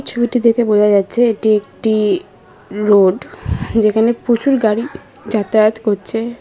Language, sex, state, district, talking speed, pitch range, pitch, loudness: Bengali, female, West Bengal, Jhargram, 110 wpm, 210-240 Hz, 225 Hz, -15 LUFS